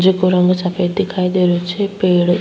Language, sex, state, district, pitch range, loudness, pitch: Rajasthani, female, Rajasthan, Churu, 180-190 Hz, -16 LUFS, 180 Hz